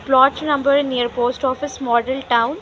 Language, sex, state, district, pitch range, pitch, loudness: English, female, Haryana, Rohtak, 245-280 Hz, 265 Hz, -18 LUFS